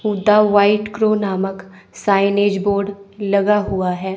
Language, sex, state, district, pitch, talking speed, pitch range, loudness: Hindi, female, Chandigarh, Chandigarh, 200 Hz, 130 wpm, 195-210 Hz, -17 LUFS